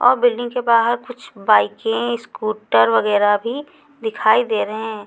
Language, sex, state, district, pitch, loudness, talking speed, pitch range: Hindi, female, Chhattisgarh, Raipur, 225 Hz, -18 LUFS, 140 wpm, 210-240 Hz